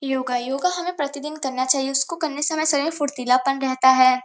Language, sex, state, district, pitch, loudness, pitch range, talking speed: Hindi, female, Uttar Pradesh, Varanasi, 275 Hz, -21 LUFS, 260-305 Hz, 195 wpm